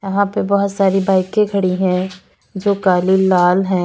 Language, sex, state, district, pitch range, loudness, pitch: Hindi, female, Uttar Pradesh, Lalitpur, 185-200 Hz, -16 LUFS, 190 Hz